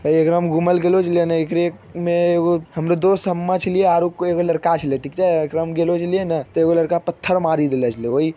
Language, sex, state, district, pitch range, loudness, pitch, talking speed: Magahi, male, Bihar, Jamui, 160-175 Hz, -19 LUFS, 170 Hz, 260 wpm